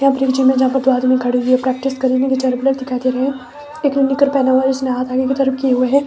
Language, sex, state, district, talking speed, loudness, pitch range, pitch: Hindi, female, Himachal Pradesh, Shimla, 275 wpm, -16 LUFS, 255-270 Hz, 265 Hz